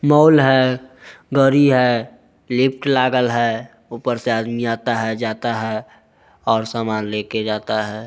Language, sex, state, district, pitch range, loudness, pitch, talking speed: Hindi, male, Bihar, Muzaffarpur, 110-130 Hz, -18 LUFS, 120 Hz, 140 wpm